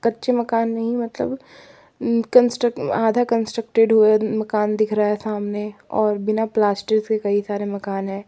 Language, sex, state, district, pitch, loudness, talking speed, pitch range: Hindi, female, Jharkhand, Palamu, 220 Hz, -20 LUFS, 150 wpm, 210-230 Hz